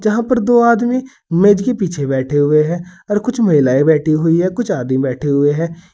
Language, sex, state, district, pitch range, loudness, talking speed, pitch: Hindi, male, Uttar Pradesh, Saharanpur, 150-230 Hz, -15 LUFS, 210 wpm, 175 Hz